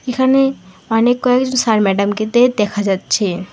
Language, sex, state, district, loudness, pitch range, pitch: Bengali, female, West Bengal, Alipurduar, -15 LUFS, 200-250 Hz, 220 Hz